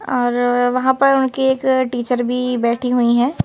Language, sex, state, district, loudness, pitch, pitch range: Hindi, female, Madhya Pradesh, Bhopal, -17 LUFS, 250 Hz, 245-260 Hz